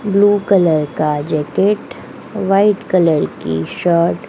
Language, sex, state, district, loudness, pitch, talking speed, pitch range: Hindi, female, Madhya Pradesh, Dhar, -15 LUFS, 180 Hz, 125 wpm, 155-200 Hz